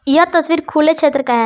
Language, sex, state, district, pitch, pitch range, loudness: Hindi, female, Jharkhand, Palamu, 315 Hz, 280-330 Hz, -14 LUFS